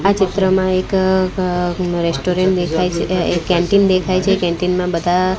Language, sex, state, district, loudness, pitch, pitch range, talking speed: Gujarati, female, Gujarat, Gandhinagar, -16 LUFS, 185 Hz, 175-190 Hz, 180 wpm